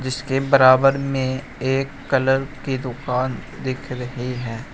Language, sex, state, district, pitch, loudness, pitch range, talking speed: Hindi, male, Uttar Pradesh, Shamli, 130 Hz, -21 LUFS, 125-135 Hz, 125 wpm